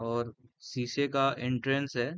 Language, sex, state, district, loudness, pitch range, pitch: Hindi, male, Uttar Pradesh, Varanasi, -31 LUFS, 120-135 Hz, 125 Hz